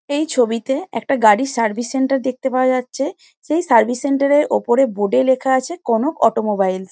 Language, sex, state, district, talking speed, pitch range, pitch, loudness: Bengali, female, West Bengal, Jhargram, 180 wpm, 230-275 Hz, 255 Hz, -17 LUFS